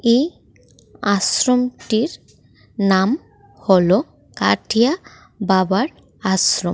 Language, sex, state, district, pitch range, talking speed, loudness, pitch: Bengali, female, Tripura, West Tripura, 190-250 Hz, 60 wpm, -18 LUFS, 215 Hz